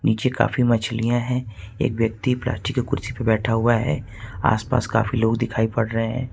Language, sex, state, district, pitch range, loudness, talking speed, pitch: Hindi, male, Jharkhand, Ranchi, 110-125 Hz, -22 LUFS, 190 wpm, 115 Hz